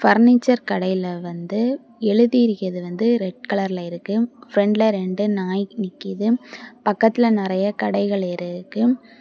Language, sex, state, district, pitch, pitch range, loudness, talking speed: Tamil, female, Tamil Nadu, Kanyakumari, 210 Hz, 190-235 Hz, -20 LUFS, 110 wpm